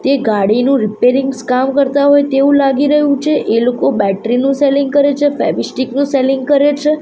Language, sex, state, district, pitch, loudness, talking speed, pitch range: Gujarati, female, Gujarat, Gandhinagar, 275 Hz, -13 LUFS, 190 wpm, 250-285 Hz